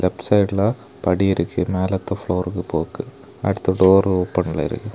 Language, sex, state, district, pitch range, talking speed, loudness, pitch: Tamil, male, Tamil Nadu, Kanyakumari, 90-100 Hz, 120 wpm, -20 LUFS, 95 Hz